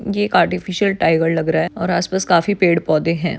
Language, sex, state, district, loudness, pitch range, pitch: Hindi, female, Maharashtra, Dhule, -17 LUFS, 165-190 Hz, 175 Hz